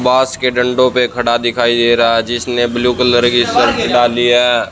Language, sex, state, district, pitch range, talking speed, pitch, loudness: Hindi, male, Haryana, Rohtak, 120-125 Hz, 205 wpm, 120 Hz, -12 LUFS